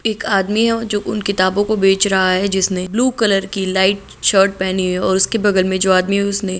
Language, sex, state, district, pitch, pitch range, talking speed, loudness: Hindi, female, Andhra Pradesh, Guntur, 195 Hz, 190-205 Hz, 210 wpm, -16 LUFS